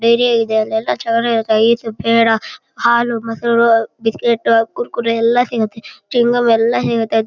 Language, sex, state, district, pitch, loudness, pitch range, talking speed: Kannada, male, Karnataka, Shimoga, 230 Hz, -15 LUFS, 225-235 Hz, 115 wpm